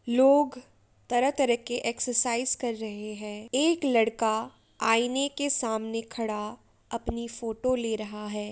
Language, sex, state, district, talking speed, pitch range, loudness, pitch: Hindi, female, Uttar Pradesh, Jalaun, 135 wpm, 220-255 Hz, -28 LUFS, 235 Hz